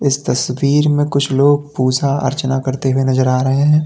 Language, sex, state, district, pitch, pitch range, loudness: Hindi, male, Uttar Pradesh, Lalitpur, 135 Hz, 130-145 Hz, -15 LUFS